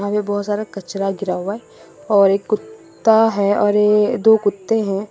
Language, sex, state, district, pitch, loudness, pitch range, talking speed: Hindi, female, Assam, Sonitpur, 205 Hz, -17 LUFS, 195-215 Hz, 190 wpm